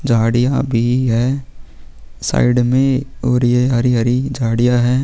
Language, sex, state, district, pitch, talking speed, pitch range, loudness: Hindi, male, Chhattisgarh, Sukma, 125 Hz, 120 wpm, 115-130 Hz, -16 LUFS